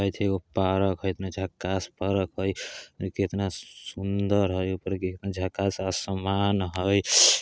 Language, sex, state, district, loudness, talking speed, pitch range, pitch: Bajjika, male, Bihar, Vaishali, -27 LUFS, 105 wpm, 95-100 Hz, 95 Hz